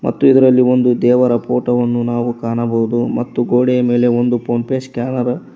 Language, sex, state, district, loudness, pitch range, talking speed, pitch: Kannada, male, Karnataka, Koppal, -15 LUFS, 120-125 Hz, 160 wpm, 120 Hz